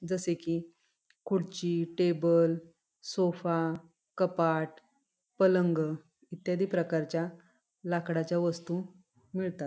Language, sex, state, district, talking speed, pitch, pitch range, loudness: Marathi, female, Maharashtra, Pune, 75 wpm, 170 Hz, 165-180 Hz, -31 LUFS